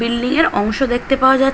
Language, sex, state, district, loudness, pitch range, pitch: Bengali, female, West Bengal, Dakshin Dinajpur, -16 LUFS, 240-270 Hz, 265 Hz